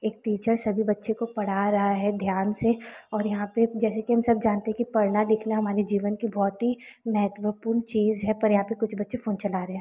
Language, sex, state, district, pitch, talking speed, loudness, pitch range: Hindi, female, West Bengal, Purulia, 215 Hz, 230 wpm, -26 LUFS, 205-225 Hz